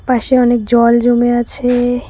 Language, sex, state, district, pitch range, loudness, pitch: Bengali, female, West Bengal, Cooch Behar, 240-245 Hz, -12 LUFS, 240 Hz